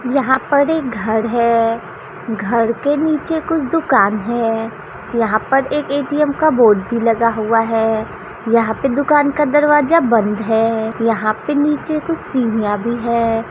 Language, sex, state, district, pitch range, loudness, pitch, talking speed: Hindi, female, Bihar, Saran, 225-290 Hz, -16 LUFS, 235 Hz, 160 wpm